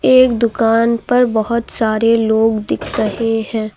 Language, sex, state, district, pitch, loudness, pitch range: Hindi, female, Uttar Pradesh, Lucknow, 225 Hz, -15 LUFS, 220-235 Hz